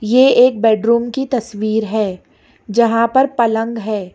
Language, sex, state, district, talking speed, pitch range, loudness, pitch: Hindi, female, Karnataka, Bangalore, 145 wpm, 215-245 Hz, -15 LUFS, 230 Hz